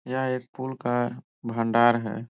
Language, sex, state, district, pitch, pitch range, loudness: Hindi, male, Bihar, Jahanabad, 120 Hz, 115-130 Hz, -26 LUFS